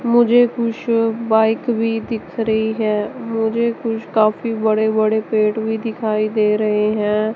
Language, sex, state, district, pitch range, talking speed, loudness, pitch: Hindi, male, Chandigarh, Chandigarh, 215-230 Hz, 145 wpm, -18 LUFS, 220 Hz